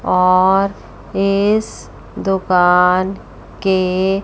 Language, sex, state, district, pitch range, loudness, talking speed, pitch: Hindi, female, Chandigarh, Chandigarh, 185-195 Hz, -15 LUFS, 55 wpm, 190 Hz